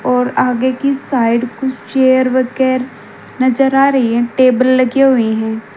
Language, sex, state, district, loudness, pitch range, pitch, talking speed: Hindi, female, Haryana, Jhajjar, -13 LUFS, 245-265 Hz, 255 Hz, 145 wpm